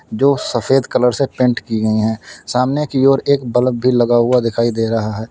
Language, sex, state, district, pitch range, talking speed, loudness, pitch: Hindi, male, Uttar Pradesh, Lalitpur, 115-130 Hz, 225 wpm, -16 LUFS, 125 Hz